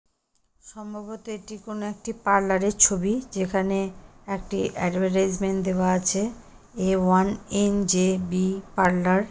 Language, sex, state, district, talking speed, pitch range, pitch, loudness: Bengali, female, West Bengal, Kolkata, 115 wpm, 190-210 Hz, 195 Hz, -24 LUFS